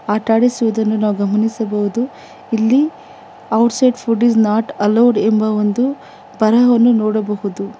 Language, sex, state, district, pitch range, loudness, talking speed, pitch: Kannada, female, Karnataka, Bangalore, 210-240 Hz, -15 LUFS, 115 wpm, 220 Hz